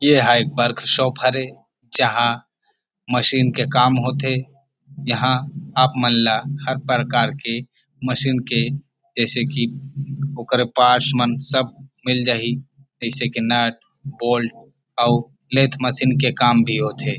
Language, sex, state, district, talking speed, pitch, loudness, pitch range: Chhattisgarhi, male, Chhattisgarh, Rajnandgaon, 140 wpm, 125 Hz, -18 LUFS, 120-135 Hz